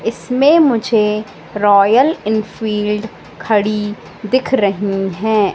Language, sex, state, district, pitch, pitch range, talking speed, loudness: Hindi, female, Madhya Pradesh, Katni, 215 Hz, 205-230 Hz, 85 wpm, -15 LUFS